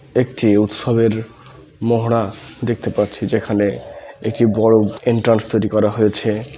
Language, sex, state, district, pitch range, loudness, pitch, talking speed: Bengali, male, West Bengal, Malda, 105-115 Hz, -17 LUFS, 110 Hz, 120 wpm